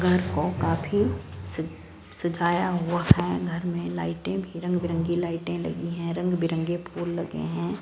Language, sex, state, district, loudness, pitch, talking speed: Hindi, female, Punjab, Fazilka, -27 LUFS, 170 Hz, 160 wpm